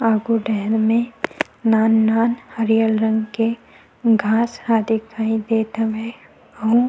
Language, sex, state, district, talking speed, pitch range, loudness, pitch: Chhattisgarhi, female, Chhattisgarh, Sukma, 115 wpm, 220-230 Hz, -19 LUFS, 225 Hz